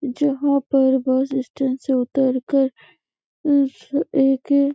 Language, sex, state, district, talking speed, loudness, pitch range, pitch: Hindi, female, Chhattisgarh, Bastar, 115 wpm, -20 LUFS, 265-280 Hz, 270 Hz